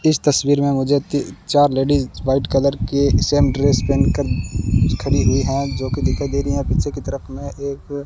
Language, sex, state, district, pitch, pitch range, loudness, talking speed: Hindi, male, Rajasthan, Bikaner, 140 Hz, 135-145 Hz, -18 LUFS, 210 wpm